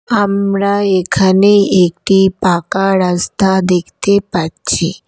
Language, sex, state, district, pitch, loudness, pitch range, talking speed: Bengali, female, West Bengal, Alipurduar, 190 Hz, -13 LUFS, 180-200 Hz, 85 wpm